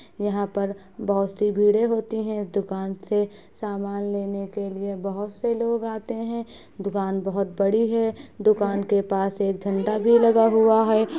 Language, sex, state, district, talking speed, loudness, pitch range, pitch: Hindi, female, Bihar, Muzaffarpur, 165 wpm, -24 LUFS, 200-220 Hz, 205 Hz